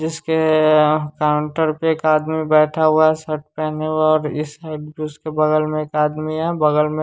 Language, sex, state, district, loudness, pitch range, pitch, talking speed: Hindi, male, Bihar, West Champaran, -18 LUFS, 150-155 Hz, 155 Hz, 190 wpm